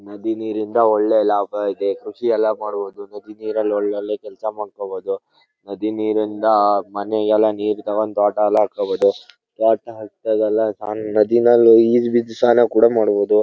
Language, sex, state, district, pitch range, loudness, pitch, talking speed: Kannada, male, Karnataka, Shimoga, 105-110 Hz, -18 LUFS, 110 Hz, 120 wpm